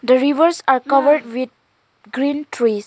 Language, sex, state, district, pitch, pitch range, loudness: English, female, Arunachal Pradesh, Lower Dibang Valley, 265 Hz, 245-290 Hz, -17 LUFS